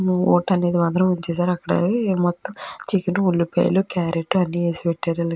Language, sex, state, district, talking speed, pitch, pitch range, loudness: Telugu, female, Andhra Pradesh, Chittoor, 125 wpm, 175 Hz, 170-185 Hz, -20 LUFS